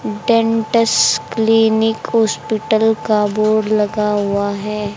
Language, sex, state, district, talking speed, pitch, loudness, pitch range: Hindi, female, Haryana, Charkhi Dadri, 95 wpm, 215 Hz, -15 LUFS, 210-225 Hz